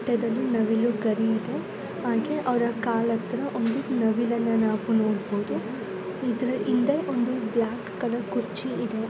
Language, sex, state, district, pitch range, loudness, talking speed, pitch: Kannada, female, Karnataka, Gulbarga, 220-240 Hz, -26 LUFS, 140 wpm, 230 Hz